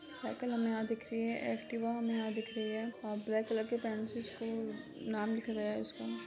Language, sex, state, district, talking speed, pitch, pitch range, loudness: Hindi, female, Bihar, Purnia, 210 wpm, 225 Hz, 220-230 Hz, -38 LUFS